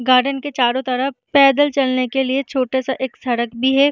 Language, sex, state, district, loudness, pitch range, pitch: Hindi, female, Uttar Pradesh, Jyotiba Phule Nagar, -18 LUFS, 255-275 Hz, 265 Hz